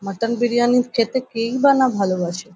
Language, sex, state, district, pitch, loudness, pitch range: Bengali, female, West Bengal, North 24 Parganas, 235 Hz, -19 LUFS, 195-250 Hz